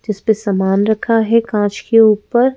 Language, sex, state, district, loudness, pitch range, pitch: Hindi, female, Madhya Pradesh, Bhopal, -14 LUFS, 205-230 Hz, 220 Hz